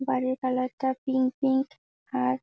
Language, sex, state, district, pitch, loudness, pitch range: Bengali, female, West Bengal, Jalpaiguri, 260 Hz, -28 LUFS, 255-265 Hz